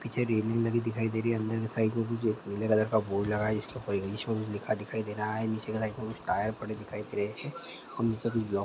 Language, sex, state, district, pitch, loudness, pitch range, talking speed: Hindi, male, Uttar Pradesh, Gorakhpur, 110 Hz, -32 LUFS, 105-115 Hz, 290 wpm